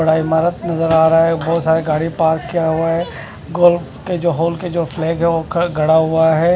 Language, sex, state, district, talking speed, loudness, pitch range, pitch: Hindi, male, Punjab, Fazilka, 230 wpm, -16 LUFS, 160-170 Hz, 165 Hz